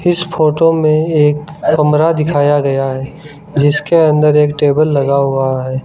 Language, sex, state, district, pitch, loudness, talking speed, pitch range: Hindi, male, Arunachal Pradesh, Lower Dibang Valley, 150 Hz, -12 LUFS, 155 wpm, 140-155 Hz